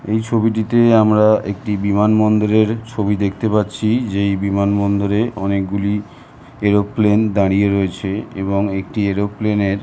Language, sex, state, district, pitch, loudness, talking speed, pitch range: Bengali, male, West Bengal, North 24 Parganas, 105 Hz, -17 LUFS, 120 wpm, 100-110 Hz